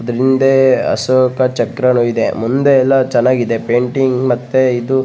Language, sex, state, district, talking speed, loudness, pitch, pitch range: Kannada, male, Karnataka, Bellary, 140 wpm, -13 LUFS, 130 Hz, 120-130 Hz